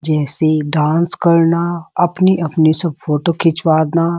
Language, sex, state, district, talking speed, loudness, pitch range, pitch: Hindi, female, Uttar Pradesh, Muzaffarnagar, 115 wpm, -15 LUFS, 155-170 Hz, 165 Hz